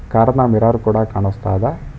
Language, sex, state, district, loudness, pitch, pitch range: Kannada, male, Karnataka, Bangalore, -16 LUFS, 110 Hz, 105-115 Hz